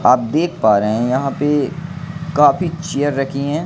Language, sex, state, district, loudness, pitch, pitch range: Hindi, male, Madhya Pradesh, Katni, -17 LUFS, 145 Hz, 135-160 Hz